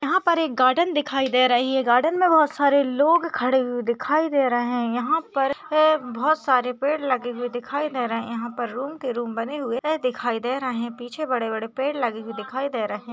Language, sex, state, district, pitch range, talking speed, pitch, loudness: Hindi, female, Maharashtra, Pune, 240-295 Hz, 230 wpm, 255 Hz, -23 LUFS